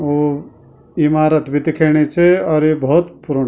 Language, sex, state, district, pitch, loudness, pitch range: Garhwali, male, Uttarakhand, Tehri Garhwal, 155 Hz, -15 LUFS, 145-160 Hz